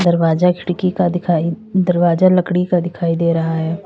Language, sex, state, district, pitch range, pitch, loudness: Hindi, female, Uttar Pradesh, Lalitpur, 170-180 Hz, 175 Hz, -16 LUFS